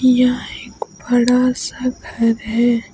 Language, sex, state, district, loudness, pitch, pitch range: Hindi, female, West Bengal, Alipurduar, -17 LUFS, 245 Hz, 230-250 Hz